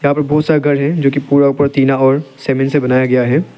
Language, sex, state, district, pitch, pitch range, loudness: Hindi, male, Arunachal Pradesh, Lower Dibang Valley, 140 Hz, 135-145 Hz, -13 LUFS